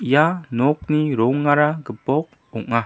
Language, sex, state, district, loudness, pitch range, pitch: Garo, male, Meghalaya, South Garo Hills, -20 LUFS, 120-150 Hz, 145 Hz